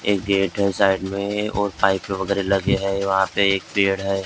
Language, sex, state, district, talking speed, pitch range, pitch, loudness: Hindi, male, Maharashtra, Gondia, 240 wpm, 95-100 Hz, 100 Hz, -21 LUFS